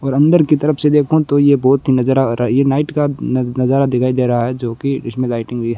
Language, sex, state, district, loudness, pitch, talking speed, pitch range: Hindi, male, Rajasthan, Bikaner, -15 LUFS, 135 Hz, 290 wpm, 125-145 Hz